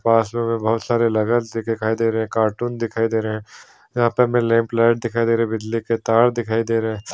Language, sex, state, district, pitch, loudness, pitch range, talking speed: Hindi, male, Bihar, Supaul, 115 Hz, -20 LUFS, 110-115 Hz, 260 wpm